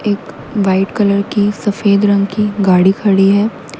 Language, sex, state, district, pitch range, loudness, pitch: Hindi, female, Haryana, Rohtak, 195-205 Hz, -13 LUFS, 200 Hz